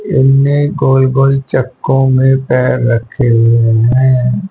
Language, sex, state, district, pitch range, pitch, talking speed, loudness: Hindi, male, Haryana, Charkhi Dadri, 125-135 Hz, 130 Hz, 105 wpm, -11 LUFS